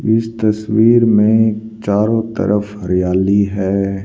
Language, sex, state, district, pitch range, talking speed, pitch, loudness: Hindi, male, Haryana, Rohtak, 100-110 Hz, 105 wpm, 105 Hz, -15 LUFS